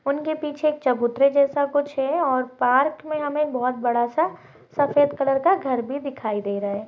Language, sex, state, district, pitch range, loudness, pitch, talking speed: Hindi, female, Chhattisgarh, Jashpur, 250-300 Hz, -22 LUFS, 280 Hz, 200 wpm